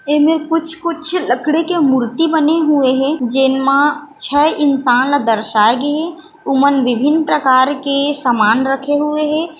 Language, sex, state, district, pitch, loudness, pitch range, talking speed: Chhattisgarhi, female, Chhattisgarh, Bilaspur, 285 Hz, -14 LUFS, 265-315 Hz, 150 wpm